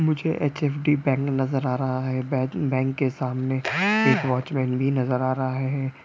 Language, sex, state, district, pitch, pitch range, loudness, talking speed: Hindi, male, Bihar, East Champaran, 130 Hz, 130-145 Hz, -24 LUFS, 200 wpm